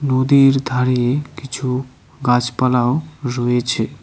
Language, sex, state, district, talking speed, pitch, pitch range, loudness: Bengali, male, West Bengal, Cooch Behar, 75 wpm, 130 Hz, 125-135 Hz, -18 LUFS